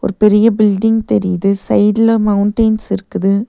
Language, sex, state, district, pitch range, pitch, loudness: Tamil, female, Tamil Nadu, Nilgiris, 200-220 Hz, 210 Hz, -13 LUFS